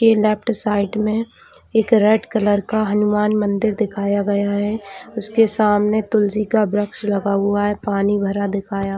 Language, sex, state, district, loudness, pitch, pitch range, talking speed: Hindi, female, Chhattisgarh, Raigarh, -18 LUFS, 210 Hz, 200-215 Hz, 160 wpm